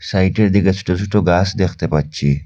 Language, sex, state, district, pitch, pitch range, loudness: Bengali, male, Assam, Hailakandi, 95 Hz, 80-100 Hz, -16 LUFS